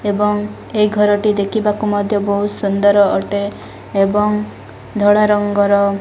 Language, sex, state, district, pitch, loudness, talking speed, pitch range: Odia, female, Odisha, Malkangiri, 205 Hz, -15 LUFS, 130 wpm, 200-210 Hz